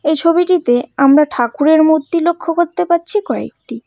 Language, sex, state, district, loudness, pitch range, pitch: Bengali, female, West Bengal, Cooch Behar, -14 LUFS, 295-345 Hz, 330 Hz